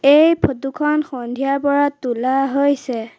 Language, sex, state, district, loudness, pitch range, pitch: Assamese, female, Assam, Sonitpur, -18 LUFS, 255-285 Hz, 275 Hz